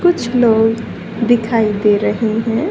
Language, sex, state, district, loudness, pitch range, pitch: Hindi, female, Haryana, Charkhi Dadri, -15 LUFS, 220-235 Hz, 225 Hz